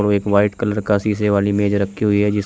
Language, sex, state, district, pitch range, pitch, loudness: Hindi, male, Uttar Pradesh, Shamli, 100-105 Hz, 105 Hz, -18 LUFS